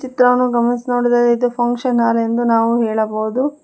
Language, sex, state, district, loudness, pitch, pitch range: Kannada, female, Karnataka, Bangalore, -16 LUFS, 240 Hz, 230-250 Hz